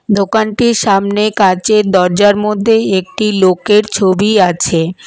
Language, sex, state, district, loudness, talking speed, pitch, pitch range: Bengali, female, West Bengal, Alipurduar, -11 LUFS, 105 wpm, 205 Hz, 185-215 Hz